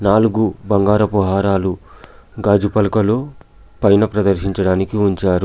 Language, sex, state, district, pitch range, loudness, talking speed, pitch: Telugu, male, Telangana, Adilabad, 95-110 Hz, -16 LUFS, 90 wpm, 100 Hz